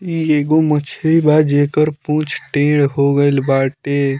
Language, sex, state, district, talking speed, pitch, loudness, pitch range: Bhojpuri, male, Bihar, Muzaffarpur, 145 wpm, 145 Hz, -15 LUFS, 140-155 Hz